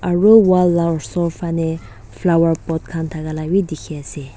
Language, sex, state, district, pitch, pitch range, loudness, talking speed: Nagamese, female, Nagaland, Dimapur, 165 Hz, 160-175 Hz, -17 LUFS, 165 wpm